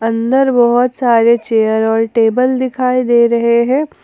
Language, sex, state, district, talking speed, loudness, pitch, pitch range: Hindi, female, Jharkhand, Ranchi, 150 wpm, -12 LUFS, 235 Hz, 230-255 Hz